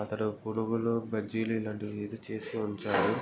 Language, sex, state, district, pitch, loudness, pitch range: Telugu, male, Andhra Pradesh, Guntur, 110 Hz, -33 LUFS, 105-110 Hz